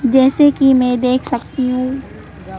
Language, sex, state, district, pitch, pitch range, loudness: Hindi, female, Madhya Pradesh, Bhopal, 260 Hz, 250-270 Hz, -14 LUFS